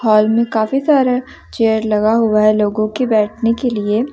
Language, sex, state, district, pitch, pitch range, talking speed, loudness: Hindi, female, Jharkhand, Deoghar, 220 Hz, 215-245 Hz, 190 wpm, -15 LUFS